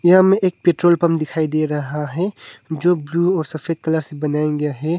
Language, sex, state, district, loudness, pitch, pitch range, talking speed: Hindi, male, Arunachal Pradesh, Longding, -19 LUFS, 160 Hz, 150-175 Hz, 205 wpm